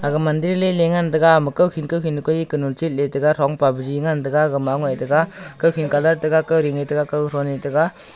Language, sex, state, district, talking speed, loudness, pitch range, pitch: Wancho, male, Arunachal Pradesh, Longding, 230 wpm, -19 LUFS, 145-165 Hz, 150 Hz